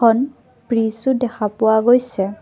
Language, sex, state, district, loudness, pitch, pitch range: Assamese, female, Assam, Kamrup Metropolitan, -18 LUFS, 230 Hz, 220-250 Hz